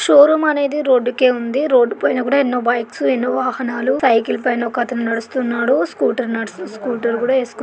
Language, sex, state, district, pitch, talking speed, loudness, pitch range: Telugu, female, Andhra Pradesh, Guntur, 245 Hz, 165 wpm, -17 LUFS, 235-260 Hz